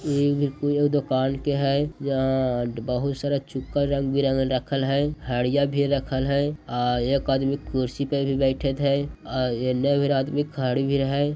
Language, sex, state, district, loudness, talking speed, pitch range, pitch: Magahi, male, Bihar, Jahanabad, -24 LUFS, 170 wpm, 130-140 Hz, 140 Hz